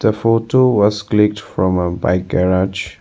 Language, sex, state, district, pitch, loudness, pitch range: English, male, Assam, Sonitpur, 100 Hz, -16 LUFS, 90-110 Hz